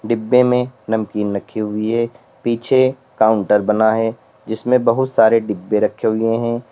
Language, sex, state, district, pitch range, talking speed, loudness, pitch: Hindi, male, Uttar Pradesh, Lalitpur, 110-120 Hz, 150 wpm, -17 LUFS, 115 Hz